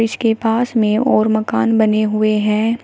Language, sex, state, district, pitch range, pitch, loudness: Hindi, female, Uttar Pradesh, Shamli, 215-225 Hz, 220 Hz, -16 LUFS